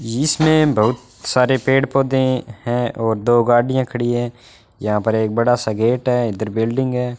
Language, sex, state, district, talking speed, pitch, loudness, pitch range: Hindi, male, Rajasthan, Bikaner, 175 wpm, 120 Hz, -18 LUFS, 115-130 Hz